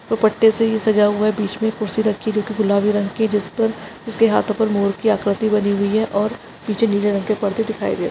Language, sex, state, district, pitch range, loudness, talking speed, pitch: Hindi, female, Chhattisgarh, Sarguja, 205-220 Hz, -19 LUFS, 250 wpm, 215 Hz